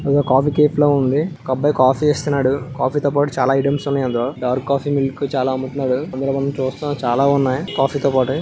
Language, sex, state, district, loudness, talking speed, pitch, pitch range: Telugu, male, Andhra Pradesh, Visakhapatnam, -18 LUFS, 190 wpm, 140 Hz, 130-145 Hz